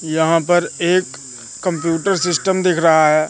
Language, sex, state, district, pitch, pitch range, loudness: Hindi, male, Madhya Pradesh, Katni, 165 Hz, 155-180 Hz, -16 LUFS